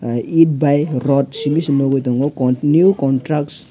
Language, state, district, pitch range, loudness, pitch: Kokborok, Tripura, West Tripura, 135-150 Hz, -16 LUFS, 145 Hz